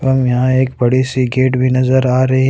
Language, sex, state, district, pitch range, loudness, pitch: Hindi, male, Jharkhand, Ranchi, 125-130 Hz, -14 LUFS, 130 Hz